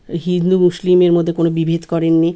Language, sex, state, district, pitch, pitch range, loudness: Bengali, male, West Bengal, Kolkata, 170 Hz, 165-180 Hz, -15 LUFS